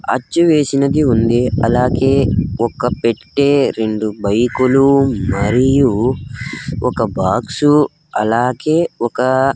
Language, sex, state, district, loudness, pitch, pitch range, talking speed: Telugu, male, Andhra Pradesh, Sri Satya Sai, -15 LUFS, 125 Hz, 115-135 Hz, 95 wpm